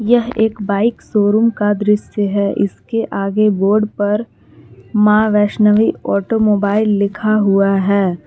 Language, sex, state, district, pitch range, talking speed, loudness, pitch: Hindi, female, Jharkhand, Palamu, 200-215 Hz, 125 wpm, -15 LUFS, 210 Hz